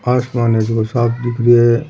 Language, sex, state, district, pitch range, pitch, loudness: Rajasthani, male, Rajasthan, Churu, 115-120 Hz, 120 Hz, -15 LUFS